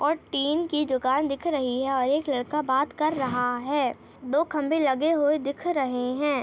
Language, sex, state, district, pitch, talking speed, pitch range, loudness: Hindi, female, Chhattisgarh, Rajnandgaon, 285 Hz, 185 wpm, 260-300 Hz, -25 LUFS